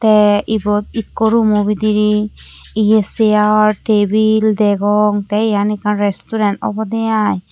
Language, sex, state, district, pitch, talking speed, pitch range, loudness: Chakma, female, Tripura, West Tripura, 210 Hz, 120 wpm, 205-220 Hz, -14 LUFS